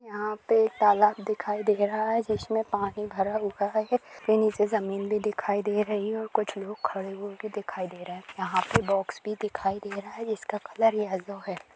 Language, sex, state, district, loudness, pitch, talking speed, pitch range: Hindi, female, Bihar, Purnia, -28 LUFS, 210 Hz, 225 wpm, 200-215 Hz